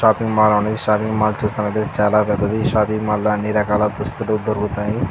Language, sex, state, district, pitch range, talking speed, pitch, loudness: Telugu, male, Andhra Pradesh, Krishna, 105-110 Hz, 200 wpm, 105 Hz, -18 LUFS